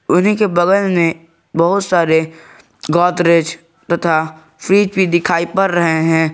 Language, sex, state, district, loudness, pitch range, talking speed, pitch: Hindi, male, Jharkhand, Garhwa, -14 LUFS, 165-185 Hz, 135 wpm, 170 Hz